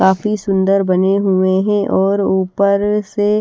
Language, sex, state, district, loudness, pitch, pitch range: Hindi, female, Bihar, West Champaran, -15 LUFS, 195 Hz, 190-205 Hz